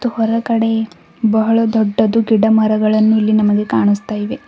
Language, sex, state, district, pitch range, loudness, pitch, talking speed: Kannada, female, Karnataka, Bidar, 215-225 Hz, -14 LUFS, 220 Hz, 105 wpm